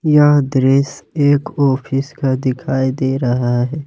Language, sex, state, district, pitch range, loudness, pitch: Hindi, male, Jharkhand, Ranchi, 130-145 Hz, -16 LUFS, 135 Hz